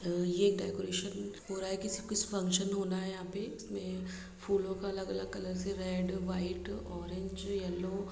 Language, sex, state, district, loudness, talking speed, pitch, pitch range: Hindi, female, Bihar, Jahanabad, -36 LUFS, 140 wpm, 190 Hz, 185-195 Hz